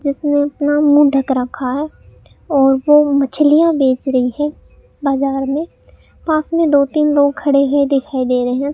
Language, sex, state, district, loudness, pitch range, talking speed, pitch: Hindi, female, Rajasthan, Bikaner, -15 LUFS, 270-295 Hz, 170 wpm, 285 Hz